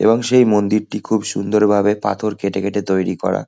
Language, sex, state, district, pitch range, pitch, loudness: Bengali, male, West Bengal, Kolkata, 100-105 Hz, 105 Hz, -17 LUFS